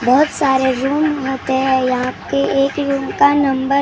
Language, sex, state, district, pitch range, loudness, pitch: Hindi, female, Maharashtra, Gondia, 260-280 Hz, -16 LUFS, 270 Hz